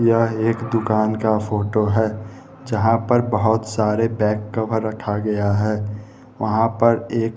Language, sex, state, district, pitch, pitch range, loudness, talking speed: Hindi, male, Bihar, West Champaran, 110 Hz, 105-115 Hz, -20 LUFS, 145 wpm